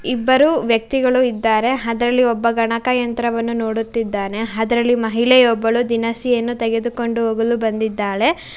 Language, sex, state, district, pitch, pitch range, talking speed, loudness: Kannada, female, Karnataka, Bangalore, 235 Hz, 225-245 Hz, 100 wpm, -17 LUFS